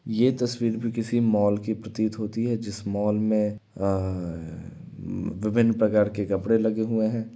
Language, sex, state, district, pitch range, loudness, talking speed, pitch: Hindi, male, Uttar Pradesh, Varanasi, 105-115 Hz, -25 LUFS, 165 wpm, 110 Hz